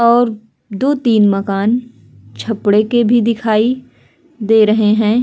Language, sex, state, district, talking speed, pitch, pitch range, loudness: Hindi, female, Uttar Pradesh, Hamirpur, 115 wpm, 220 Hz, 210-240 Hz, -14 LUFS